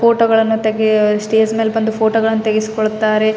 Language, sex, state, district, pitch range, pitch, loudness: Kannada, female, Karnataka, Raichur, 215-225 Hz, 220 Hz, -15 LUFS